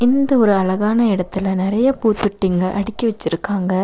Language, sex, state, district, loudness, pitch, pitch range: Tamil, female, Tamil Nadu, Nilgiris, -17 LUFS, 200 Hz, 190-225 Hz